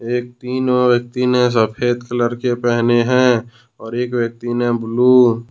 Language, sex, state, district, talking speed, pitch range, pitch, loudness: Hindi, male, Jharkhand, Ranchi, 165 wpm, 120-125 Hz, 120 Hz, -16 LUFS